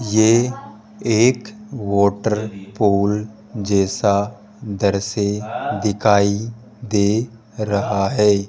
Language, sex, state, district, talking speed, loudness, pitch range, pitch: Hindi, male, Rajasthan, Jaipur, 70 wpm, -19 LUFS, 100-110 Hz, 105 Hz